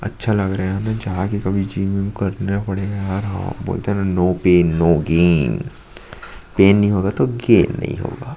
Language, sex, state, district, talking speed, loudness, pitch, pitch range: Hindi, male, Chhattisgarh, Sukma, 200 wpm, -18 LUFS, 100 Hz, 95-100 Hz